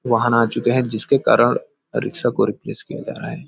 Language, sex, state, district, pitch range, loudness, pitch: Hindi, male, Chhattisgarh, Bilaspur, 115-140 Hz, -19 LUFS, 120 Hz